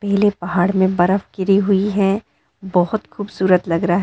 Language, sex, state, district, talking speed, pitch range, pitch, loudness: Hindi, female, Arunachal Pradesh, Lower Dibang Valley, 180 wpm, 180-200 Hz, 195 Hz, -18 LUFS